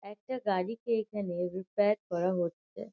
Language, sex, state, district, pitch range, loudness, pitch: Bengali, female, West Bengal, Kolkata, 180-215 Hz, -32 LUFS, 205 Hz